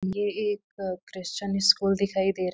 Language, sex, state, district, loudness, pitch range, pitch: Hindi, female, Uttarakhand, Uttarkashi, -26 LUFS, 190-205 Hz, 195 Hz